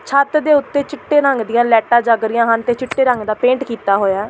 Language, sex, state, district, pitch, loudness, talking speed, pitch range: Punjabi, female, Delhi, New Delhi, 240 Hz, -15 LUFS, 235 wpm, 225-275 Hz